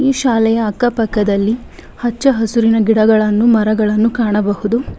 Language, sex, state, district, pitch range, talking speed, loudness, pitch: Kannada, female, Karnataka, Bangalore, 215-235 Hz, 110 wpm, -14 LUFS, 225 Hz